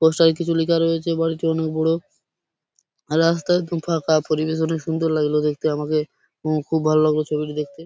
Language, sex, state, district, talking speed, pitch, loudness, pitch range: Bengali, male, West Bengal, Purulia, 175 wpm, 160 Hz, -21 LUFS, 155-165 Hz